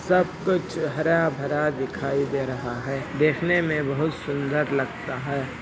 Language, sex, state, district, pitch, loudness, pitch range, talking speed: Hindi, female, Andhra Pradesh, Anantapur, 145 Hz, -25 LUFS, 135-160 Hz, 150 wpm